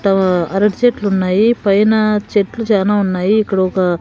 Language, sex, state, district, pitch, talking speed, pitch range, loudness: Telugu, female, Andhra Pradesh, Sri Satya Sai, 200 Hz, 150 wpm, 190-215 Hz, -14 LUFS